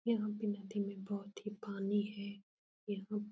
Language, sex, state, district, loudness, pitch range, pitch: Hindi, female, Uttar Pradesh, Etah, -41 LUFS, 200-210 Hz, 205 Hz